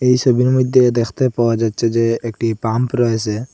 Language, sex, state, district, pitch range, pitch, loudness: Bengali, male, Assam, Hailakandi, 115-125 Hz, 120 Hz, -16 LUFS